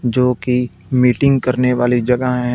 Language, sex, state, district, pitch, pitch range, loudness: Hindi, male, Punjab, Fazilka, 125 Hz, 120-125 Hz, -16 LUFS